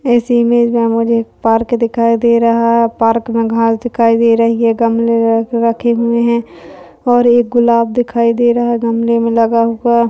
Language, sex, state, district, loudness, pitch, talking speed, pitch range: Hindi, female, Bihar, Kishanganj, -12 LUFS, 230 Hz, 195 wpm, 230-235 Hz